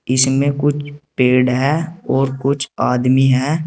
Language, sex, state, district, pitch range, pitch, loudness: Hindi, male, Uttar Pradesh, Saharanpur, 130-145 Hz, 135 Hz, -16 LUFS